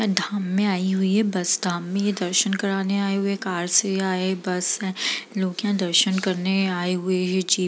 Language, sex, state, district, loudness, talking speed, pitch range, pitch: Hindi, female, Bihar, Gaya, -23 LUFS, 210 wpm, 185-200 Hz, 190 Hz